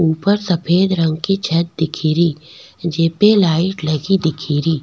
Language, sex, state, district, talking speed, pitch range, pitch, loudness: Rajasthani, female, Rajasthan, Nagaur, 125 wpm, 160-185 Hz, 165 Hz, -16 LUFS